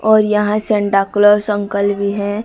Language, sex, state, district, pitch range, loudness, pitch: Hindi, female, Odisha, Sambalpur, 200-210 Hz, -15 LUFS, 205 Hz